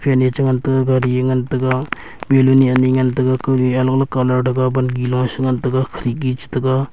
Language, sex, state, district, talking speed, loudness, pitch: Wancho, male, Arunachal Pradesh, Longding, 205 wpm, -17 LUFS, 130 Hz